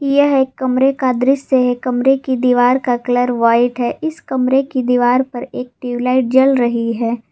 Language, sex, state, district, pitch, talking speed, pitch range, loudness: Hindi, female, Jharkhand, Garhwa, 255 Hz, 190 wpm, 245-265 Hz, -15 LUFS